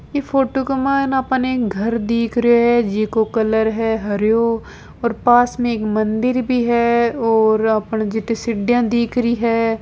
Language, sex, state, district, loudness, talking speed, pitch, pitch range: Hindi, female, Rajasthan, Nagaur, -17 LUFS, 165 wpm, 230 Hz, 220-245 Hz